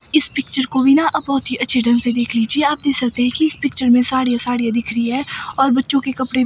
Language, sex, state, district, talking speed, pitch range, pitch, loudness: Hindi, female, Himachal Pradesh, Shimla, 290 wpm, 245-275 Hz, 260 Hz, -16 LUFS